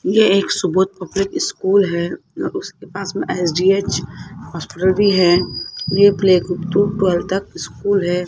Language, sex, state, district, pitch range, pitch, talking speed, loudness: Hindi, male, Rajasthan, Jaipur, 180-200 Hz, 190 Hz, 150 wpm, -17 LUFS